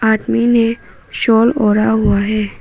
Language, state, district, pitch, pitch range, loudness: Hindi, Arunachal Pradesh, Papum Pare, 220 Hz, 215-230 Hz, -14 LUFS